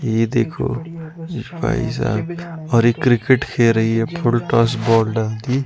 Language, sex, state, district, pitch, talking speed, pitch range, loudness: Hindi, male, Himachal Pradesh, Shimla, 120 Hz, 150 wpm, 115-155 Hz, -18 LUFS